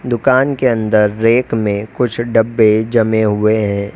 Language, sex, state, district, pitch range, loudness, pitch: Hindi, male, Uttar Pradesh, Lalitpur, 105-120 Hz, -14 LUFS, 110 Hz